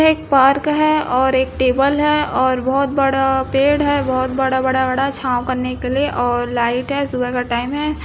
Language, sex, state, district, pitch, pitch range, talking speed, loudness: Hindi, female, Chhattisgarh, Bilaspur, 265 Hz, 255-280 Hz, 170 wpm, -17 LUFS